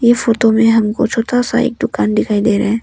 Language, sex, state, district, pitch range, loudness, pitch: Hindi, female, Arunachal Pradesh, Longding, 210-240 Hz, -14 LUFS, 225 Hz